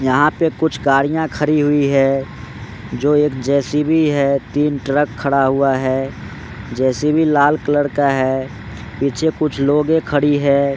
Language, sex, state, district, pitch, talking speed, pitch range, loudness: Hindi, male, Rajasthan, Nagaur, 140 Hz, 145 wpm, 135-150 Hz, -16 LUFS